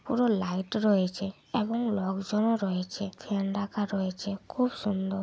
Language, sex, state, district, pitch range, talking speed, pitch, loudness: Bengali, female, West Bengal, Malda, 195-215 Hz, 125 wpm, 200 Hz, -30 LUFS